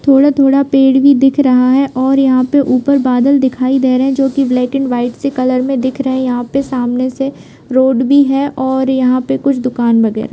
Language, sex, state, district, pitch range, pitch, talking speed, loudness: Hindi, female, Bihar, Begusarai, 255-275 Hz, 265 Hz, 240 wpm, -12 LUFS